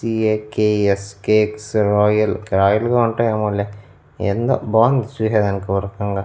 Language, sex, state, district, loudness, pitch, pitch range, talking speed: Telugu, male, Andhra Pradesh, Annamaya, -18 LUFS, 105 Hz, 100-110 Hz, 135 wpm